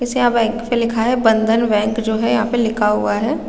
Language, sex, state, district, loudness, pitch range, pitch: Hindi, female, Chhattisgarh, Raigarh, -17 LUFS, 220-235 Hz, 225 Hz